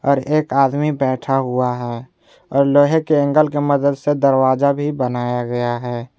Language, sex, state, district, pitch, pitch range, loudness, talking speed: Hindi, male, Jharkhand, Ranchi, 135 Hz, 125-145 Hz, -17 LUFS, 175 wpm